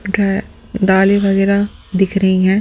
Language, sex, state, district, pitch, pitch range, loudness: Hindi, male, Delhi, New Delhi, 195 Hz, 195-200 Hz, -15 LUFS